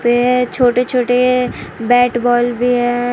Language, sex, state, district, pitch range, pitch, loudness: Hindi, female, Jharkhand, Palamu, 245-250 Hz, 245 Hz, -14 LUFS